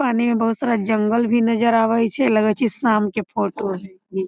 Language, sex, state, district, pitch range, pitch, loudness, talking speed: Maithili, female, Bihar, Samastipur, 215-235 Hz, 225 Hz, -19 LUFS, 210 wpm